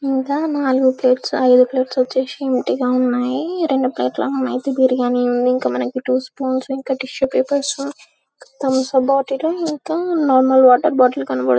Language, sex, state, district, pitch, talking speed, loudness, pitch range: Telugu, male, Telangana, Karimnagar, 260 Hz, 140 wpm, -17 LUFS, 255-275 Hz